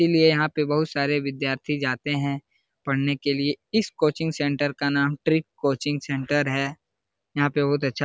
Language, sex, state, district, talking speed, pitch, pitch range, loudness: Hindi, male, Bihar, Jahanabad, 200 wpm, 145 Hz, 140-150 Hz, -24 LUFS